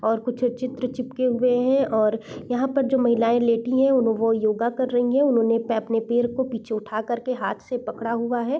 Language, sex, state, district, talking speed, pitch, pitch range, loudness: Hindi, female, Bihar, East Champaran, 215 wpm, 240 Hz, 230-255 Hz, -23 LUFS